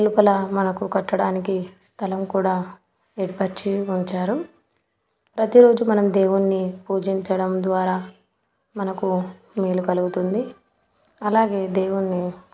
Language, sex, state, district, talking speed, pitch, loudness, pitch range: Telugu, female, Telangana, Nalgonda, 90 wpm, 195 Hz, -21 LUFS, 185-200 Hz